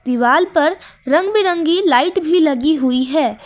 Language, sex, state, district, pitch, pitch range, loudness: Hindi, female, Jharkhand, Ranchi, 320 Hz, 270-350 Hz, -15 LUFS